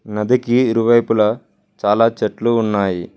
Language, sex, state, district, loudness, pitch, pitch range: Telugu, male, Telangana, Mahabubabad, -16 LUFS, 115 Hz, 105-120 Hz